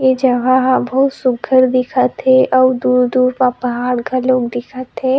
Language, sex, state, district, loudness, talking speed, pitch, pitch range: Chhattisgarhi, female, Chhattisgarh, Rajnandgaon, -14 LUFS, 160 wpm, 255 Hz, 250-260 Hz